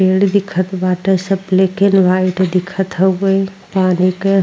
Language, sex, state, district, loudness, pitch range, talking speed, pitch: Bhojpuri, female, Uttar Pradesh, Ghazipur, -15 LUFS, 185-195 Hz, 160 wpm, 190 Hz